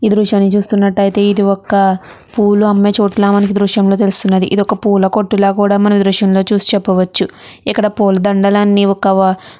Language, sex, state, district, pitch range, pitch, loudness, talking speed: Telugu, female, Andhra Pradesh, Chittoor, 195-205 Hz, 200 Hz, -12 LUFS, 165 wpm